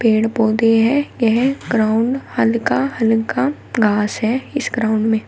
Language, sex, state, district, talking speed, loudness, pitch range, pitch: Hindi, female, Uttar Pradesh, Shamli, 135 wpm, -17 LUFS, 220-250 Hz, 225 Hz